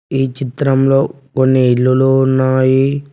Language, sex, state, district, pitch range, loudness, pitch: Telugu, male, Telangana, Mahabubabad, 130-135 Hz, -13 LUFS, 135 Hz